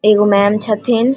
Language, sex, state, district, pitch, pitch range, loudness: Maithili, female, Bihar, Vaishali, 215 Hz, 205-235 Hz, -13 LUFS